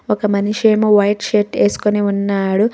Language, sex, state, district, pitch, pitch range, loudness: Telugu, female, Telangana, Hyderabad, 210 Hz, 200-210 Hz, -15 LUFS